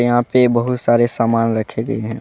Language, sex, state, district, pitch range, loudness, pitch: Hindi, male, Jharkhand, Deoghar, 115-120 Hz, -16 LUFS, 120 Hz